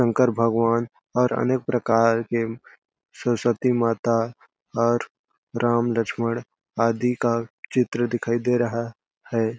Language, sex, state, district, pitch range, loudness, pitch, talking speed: Hindi, male, Chhattisgarh, Balrampur, 115-120 Hz, -23 LUFS, 115 Hz, 105 wpm